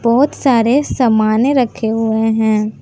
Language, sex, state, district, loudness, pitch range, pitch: Hindi, female, Jharkhand, Palamu, -14 LUFS, 220-250 Hz, 225 Hz